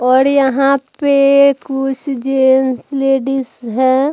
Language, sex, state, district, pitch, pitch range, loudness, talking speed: Hindi, female, Bihar, Vaishali, 270 Hz, 260-275 Hz, -14 LUFS, 100 wpm